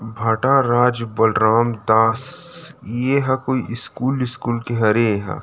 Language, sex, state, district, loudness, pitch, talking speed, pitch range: Chhattisgarhi, male, Chhattisgarh, Rajnandgaon, -19 LUFS, 120 Hz, 145 wpm, 110-130 Hz